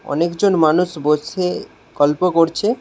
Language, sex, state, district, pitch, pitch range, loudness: Bengali, male, West Bengal, Alipurduar, 170 Hz, 155-185 Hz, -17 LUFS